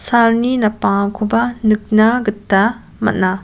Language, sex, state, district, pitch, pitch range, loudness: Garo, female, Meghalaya, West Garo Hills, 215 Hz, 205-230 Hz, -15 LUFS